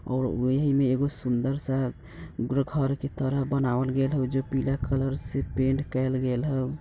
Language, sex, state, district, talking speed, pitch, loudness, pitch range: Bajjika, male, Bihar, Vaishali, 185 wpm, 135 Hz, -27 LUFS, 130-135 Hz